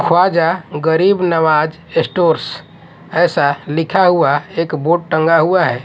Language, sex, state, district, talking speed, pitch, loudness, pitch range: Hindi, male, Odisha, Nuapada, 125 wpm, 165 Hz, -14 LUFS, 155-175 Hz